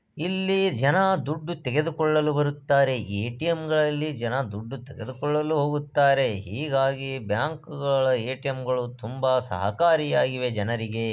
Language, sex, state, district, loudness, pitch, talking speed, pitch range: Kannada, male, Karnataka, Bijapur, -25 LUFS, 135 Hz, 110 wpm, 125-150 Hz